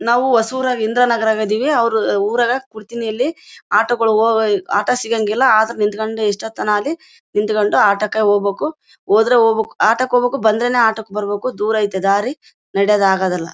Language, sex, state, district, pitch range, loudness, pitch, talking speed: Kannada, female, Karnataka, Bellary, 210-245 Hz, -16 LUFS, 220 Hz, 170 wpm